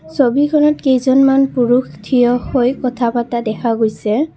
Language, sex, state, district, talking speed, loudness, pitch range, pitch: Assamese, female, Assam, Kamrup Metropolitan, 125 wpm, -15 LUFS, 235-270 Hz, 250 Hz